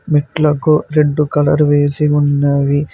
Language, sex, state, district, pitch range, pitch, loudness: Telugu, male, Telangana, Mahabubabad, 145-150 Hz, 145 Hz, -14 LUFS